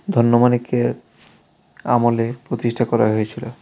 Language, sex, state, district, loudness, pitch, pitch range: Bengali, male, Tripura, West Tripura, -19 LUFS, 120 Hz, 115-120 Hz